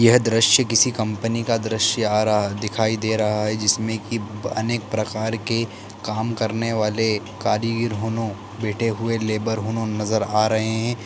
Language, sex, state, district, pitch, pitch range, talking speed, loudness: Hindi, male, Bihar, Lakhisarai, 110 Hz, 105-115 Hz, 165 wpm, -21 LUFS